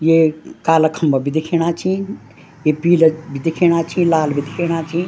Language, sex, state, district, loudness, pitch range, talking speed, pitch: Garhwali, female, Uttarakhand, Tehri Garhwal, -17 LUFS, 155-170 Hz, 175 wpm, 160 Hz